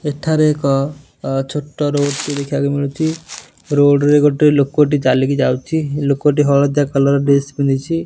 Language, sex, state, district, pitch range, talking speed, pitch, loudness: Odia, male, Odisha, Nuapada, 140-150 Hz, 140 wpm, 145 Hz, -16 LUFS